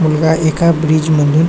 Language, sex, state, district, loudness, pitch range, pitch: Marathi, male, Maharashtra, Chandrapur, -13 LUFS, 155-160 Hz, 155 Hz